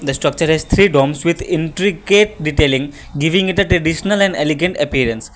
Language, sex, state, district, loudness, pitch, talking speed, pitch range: English, male, Assam, Kamrup Metropolitan, -15 LUFS, 160 Hz, 170 wpm, 145-190 Hz